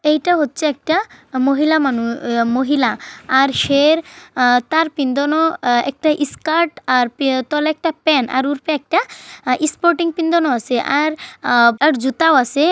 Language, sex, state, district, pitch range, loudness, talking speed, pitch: Bengali, female, West Bengal, Kolkata, 260-315 Hz, -16 LUFS, 125 wpm, 290 Hz